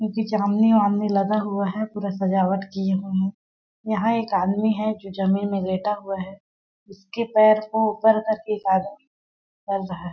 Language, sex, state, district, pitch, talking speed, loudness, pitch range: Hindi, female, Chhattisgarh, Sarguja, 205 Hz, 180 wpm, -22 LUFS, 195-215 Hz